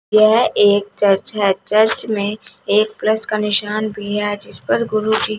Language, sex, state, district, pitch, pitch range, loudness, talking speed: Hindi, female, Punjab, Fazilka, 215 Hz, 205-215 Hz, -17 LUFS, 180 wpm